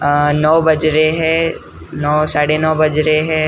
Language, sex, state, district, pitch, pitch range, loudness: Hindi, male, Maharashtra, Gondia, 155 Hz, 150-155 Hz, -14 LUFS